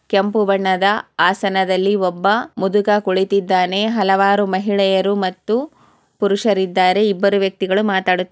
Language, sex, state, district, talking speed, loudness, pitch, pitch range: Kannada, female, Karnataka, Chamarajanagar, 100 wpm, -17 LUFS, 195 Hz, 190-205 Hz